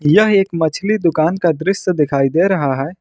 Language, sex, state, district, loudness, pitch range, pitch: Hindi, male, Jharkhand, Ranchi, -15 LUFS, 150-195 Hz, 170 Hz